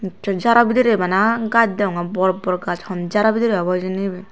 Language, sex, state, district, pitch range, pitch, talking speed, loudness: Chakma, female, Tripura, Unakoti, 185-225 Hz, 195 Hz, 195 wpm, -18 LUFS